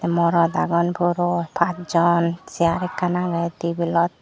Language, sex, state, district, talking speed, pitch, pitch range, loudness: Chakma, female, Tripura, Dhalai, 140 wpm, 170 Hz, 170-175 Hz, -21 LUFS